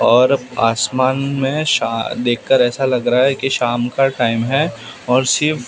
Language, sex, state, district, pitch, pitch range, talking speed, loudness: Hindi, male, Maharashtra, Mumbai Suburban, 125 Hz, 120-135 Hz, 170 wpm, -16 LUFS